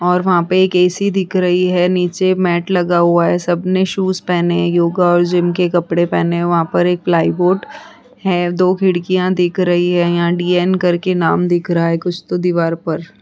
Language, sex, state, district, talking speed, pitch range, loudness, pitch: Hindi, female, Uttar Pradesh, Hamirpur, 220 wpm, 175-185 Hz, -15 LUFS, 180 Hz